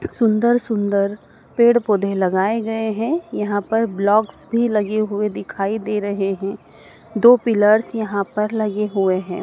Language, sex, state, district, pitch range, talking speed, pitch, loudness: Hindi, female, Madhya Pradesh, Dhar, 200-225 Hz, 155 wpm, 210 Hz, -19 LUFS